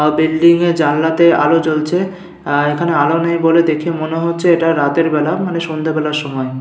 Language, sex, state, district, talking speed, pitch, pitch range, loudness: Bengali, male, West Bengal, Paschim Medinipur, 180 wpm, 165 Hz, 150-170 Hz, -14 LUFS